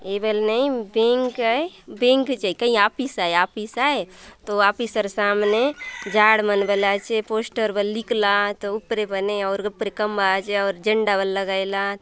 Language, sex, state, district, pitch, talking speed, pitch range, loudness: Halbi, female, Chhattisgarh, Bastar, 210 Hz, 105 wpm, 200-230 Hz, -21 LUFS